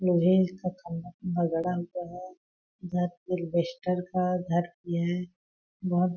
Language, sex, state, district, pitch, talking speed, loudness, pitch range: Hindi, female, Chhattisgarh, Balrampur, 180 Hz, 125 wpm, -30 LUFS, 175-180 Hz